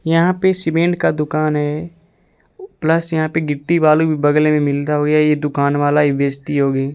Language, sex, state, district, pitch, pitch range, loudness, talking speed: Hindi, male, Bihar, Kaimur, 155 Hz, 145-165 Hz, -16 LUFS, 180 wpm